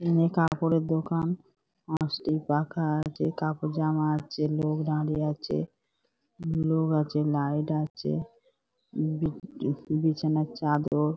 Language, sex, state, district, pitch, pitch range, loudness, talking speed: Bengali, female, West Bengal, Dakshin Dinajpur, 155 Hz, 150-160 Hz, -28 LUFS, 95 wpm